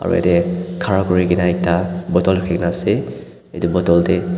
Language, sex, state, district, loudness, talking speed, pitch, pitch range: Nagamese, male, Nagaland, Dimapur, -17 LUFS, 165 wpm, 90 Hz, 85-90 Hz